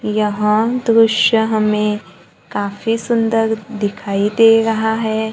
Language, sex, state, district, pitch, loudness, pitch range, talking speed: Hindi, male, Maharashtra, Gondia, 220 Hz, -16 LUFS, 210-225 Hz, 100 wpm